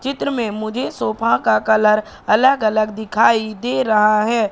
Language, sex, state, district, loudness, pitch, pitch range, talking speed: Hindi, female, Madhya Pradesh, Katni, -17 LUFS, 220 Hz, 215-235 Hz, 160 wpm